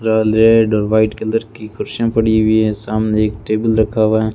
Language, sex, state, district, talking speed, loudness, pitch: Hindi, male, Rajasthan, Bikaner, 205 wpm, -15 LUFS, 110 Hz